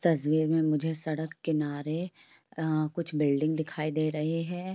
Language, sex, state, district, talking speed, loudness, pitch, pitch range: Hindi, female, Bihar, Jamui, 150 wpm, -30 LUFS, 155 Hz, 155-160 Hz